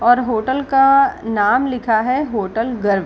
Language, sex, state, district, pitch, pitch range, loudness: Hindi, female, Bihar, Gaya, 245 Hz, 220-270 Hz, -16 LUFS